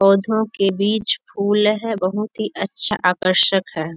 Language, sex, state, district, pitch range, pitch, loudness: Hindi, female, Bihar, Bhagalpur, 185-215 Hz, 200 Hz, -18 LUFS